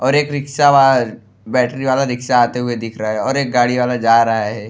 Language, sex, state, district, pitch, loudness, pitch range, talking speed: Bhojpuri, male, Uttar Pradesh, Deoria, 125 Hz, -15 LUFS, 115-135 Hz, 240 wpm